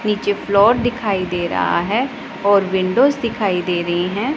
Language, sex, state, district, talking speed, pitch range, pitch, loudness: Hindi, female, Punjab, Pathankot, 165 wpm, 185-240 Hz, 205 Hz, -17 LUFS